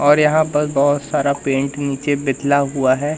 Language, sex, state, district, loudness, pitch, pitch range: Hindi, male, Madhya Pradesh, Katni, -17 LUFS, 140 Hz, 140-150 Hz